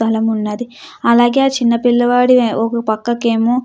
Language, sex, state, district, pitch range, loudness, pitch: Telugu, female, Andhra Pradesh, Krishna, 225-245 Hz, -14 LUFS, 235 Hz